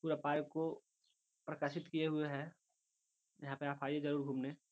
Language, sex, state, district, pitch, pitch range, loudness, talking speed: Hindi, male, Bihar, Gopalganj, 150 Hz, 140-160 Hz, -41 LUFS, 180 wpm